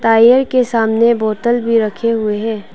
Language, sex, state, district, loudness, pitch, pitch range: Hindi, female, Arunachal Pradesh, Papum Pare, -14 LUFS, 230 Hz, 220-235 Hz